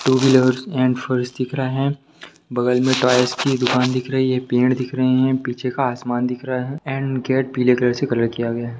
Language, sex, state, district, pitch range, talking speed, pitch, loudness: Hindi, male, Bihar, Sitamarhi, 125-130 Hz, 240 wpm, 130 Hz, -19 LUFS